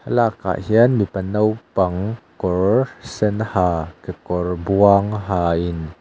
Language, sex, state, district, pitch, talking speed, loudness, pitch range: Mizo, male, Mizoram, Aizawl, 100 Hz, 110 wpm, -19 LUFS, 90-110 Hz